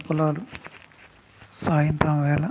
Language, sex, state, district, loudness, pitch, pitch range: Telugu, male, Andhra Pradesh, Guntur, -24 LUFS, 150 Hz, 150-155 Hz